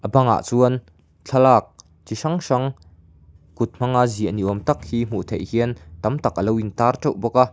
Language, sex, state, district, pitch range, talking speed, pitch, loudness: Mizo, male, Mizoram, Aizawl, 90-125 Hz, 190 wpm, 115 Hz, -21 LUFS